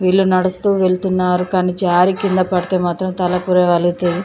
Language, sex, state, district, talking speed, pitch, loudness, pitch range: Telugu, female, Andhra Pradesh, Chittoor, 140 wpm, 185 Hz, -16 LUFS, 180-185 Hz